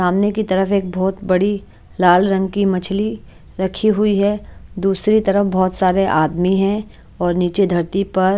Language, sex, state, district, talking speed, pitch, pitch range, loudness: Hindi, female, Chandigarh, Chandigarh, 165 wpm, 195 Hz, 185-200 Hz, -17 LUFS